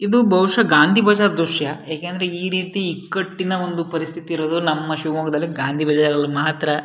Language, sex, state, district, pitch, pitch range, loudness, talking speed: Kannada, male, Karnataka, Shimoga, 165 Hz, 155-185 Hz, -19 LUFS, 140 wpm